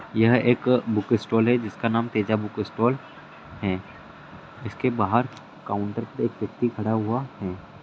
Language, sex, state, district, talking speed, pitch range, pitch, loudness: Hindi, male, Bihar, Araria, 155 wpm, 105-120 Hz, 115 Hz, -25 LUFS